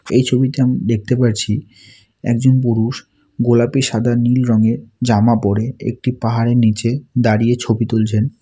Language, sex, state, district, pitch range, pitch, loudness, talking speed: Bengali, male, West Bengal, Alipurduar, 110-125 Hz, 120 Hz, -16 LUFS, 135 wpm